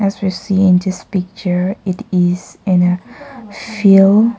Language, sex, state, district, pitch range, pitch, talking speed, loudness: English, female, Nagaland, Kohima, 180-205 Hz, 190 Hz, 135 wpm, -14 LUFS